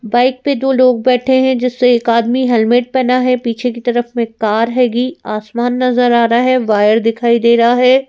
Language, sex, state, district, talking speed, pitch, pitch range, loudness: Hindi, female, Madhya Pradesh, Bhopal, 205 wpm, 245 Hz, 235-255 Hz, -13 LUFS